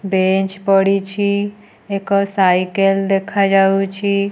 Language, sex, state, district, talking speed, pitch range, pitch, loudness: Odia, female, Odisha, Nuapada, 70 wpm, 195-200 Hz, 195 Hz, -16 LUFS